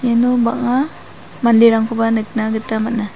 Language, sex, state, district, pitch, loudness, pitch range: Garo, female, Meghalaya, South Garo Hills, 230 Hz, -16 LUFS, 220-240 Hz